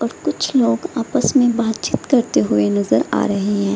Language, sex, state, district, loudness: Hindi, female, Bihar, Samastipur, -17 LUFS